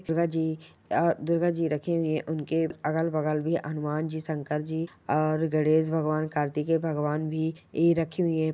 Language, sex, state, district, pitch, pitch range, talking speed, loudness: Angika, male, Bihar, Samastipur, 160 Hz, 155-165 Hz, 175 wpm, -28 LUFS